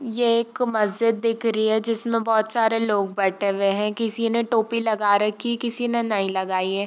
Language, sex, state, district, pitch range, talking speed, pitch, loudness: Hindi, female, Bihar, Darbhanga, 205-230 Hz, 200 wpm, 225 Hz, -22 LUFS